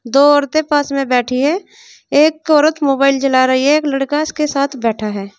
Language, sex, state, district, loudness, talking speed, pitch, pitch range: Hindi, female, Uttar Pradesh, Saharanpur, -14 LUFS, 200 wpm, 280 Hz, 260-300 Hz